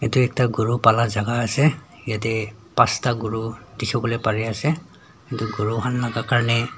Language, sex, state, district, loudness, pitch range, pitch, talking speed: Nagamese, male, Nagaland, Dimapur, -22 LUFS, 110-125 Hz, 115 Hz, 150 wpm